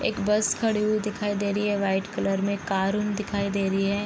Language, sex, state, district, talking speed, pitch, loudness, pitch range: Hindi, female, Bihar, Vaishali, 265 wpm, 205 Hz, -25 LUFS, 195-210 Hz